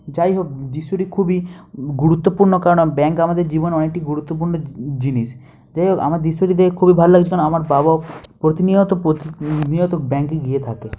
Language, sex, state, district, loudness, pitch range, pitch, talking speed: Bengali, male, West Bengal, Kolkata, -17 LUFS, 150-180 Hz, 165 Hz, 160 wpm